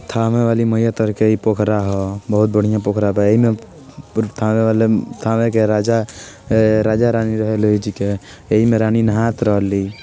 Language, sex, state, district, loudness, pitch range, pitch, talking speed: Bhojpuri, male, Bihar, Gopalganj, -16 LUFS, 105-115 Hz, 110 Hz, 155 wpm